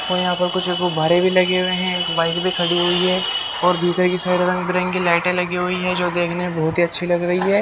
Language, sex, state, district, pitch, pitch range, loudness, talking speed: Hindi, male, Haryana, Jhajjar, 180 Hz, 175-180 Hz, -18 LUFS, 270 wpm